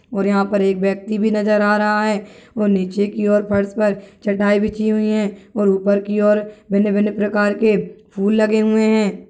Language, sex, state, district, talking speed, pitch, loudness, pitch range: Hindi, female, Maharashtra, Nagpur, 205 wpm, 210 Hz, -17 LUFS, 200-215 Hz